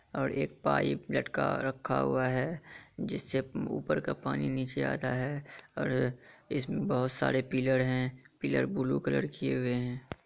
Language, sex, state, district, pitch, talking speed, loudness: Hindi, male, Bihar, Kishanganj, 125 Hz, 150 wpm, -32 LUFS